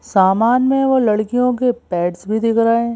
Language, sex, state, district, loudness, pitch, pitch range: Hindi, female, Madhya Pradesh, Bhopal, -16 LUFS, 230 Hz, 215-250 Hz